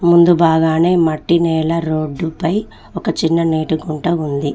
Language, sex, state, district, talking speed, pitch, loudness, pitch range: Telugu, female, Telangana, Mahabubabad, 130 wpm, 165 Hz, -16 LUFS, 160-170 Hz